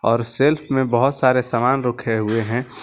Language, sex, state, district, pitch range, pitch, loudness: Hindi, male, Jharkhand, Garhwa, 115-135 Hz, 125 Hz, -19 LUFS